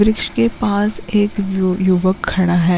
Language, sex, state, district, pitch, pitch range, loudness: Hindi, female, Uttarakhand, Uttarkashi, 195 Hz, 185-210 Hz, -17 LUFS